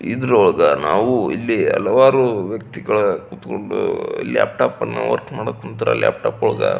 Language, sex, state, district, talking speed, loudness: Kannada, male, Karnataka, Belgaum, 115 wpm, -18 LUFS